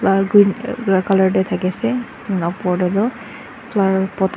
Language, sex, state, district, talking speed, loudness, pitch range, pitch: Nagamese, female, Nagaland, Dimapur, 135 wpm, -18 LUFS, 190-230 Hz, 195 Hz